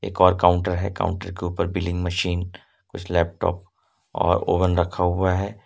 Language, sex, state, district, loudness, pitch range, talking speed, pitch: Hindi, male, Jharkhand, Ranchi, -22 LUFS, 90-95 Hz, 170 wpm, 90 Hz